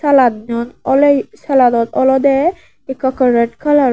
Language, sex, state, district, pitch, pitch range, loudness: Chakma, female, Tripura, West Tripura, 265 Hz, 240-280 Hz, -14 LUFS